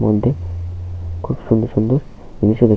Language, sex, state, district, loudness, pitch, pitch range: Bengali, male, West Bengal, Paschim Medinipur, -19 LUFS, 105 Hz, 90-115 Hz